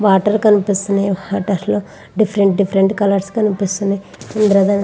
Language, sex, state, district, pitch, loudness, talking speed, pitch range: Telugu, female, Andhra Pradesh, Visakhapatnam, 200 Hz, -16 LUFS, 110 wpm, 195-205 Hz